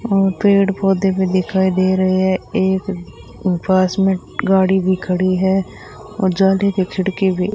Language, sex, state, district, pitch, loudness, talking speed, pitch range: Hindi, female, Rajasthan, Bikaner, 190 Hz, -16 LUFS, 150 wpm, 185-195 Hz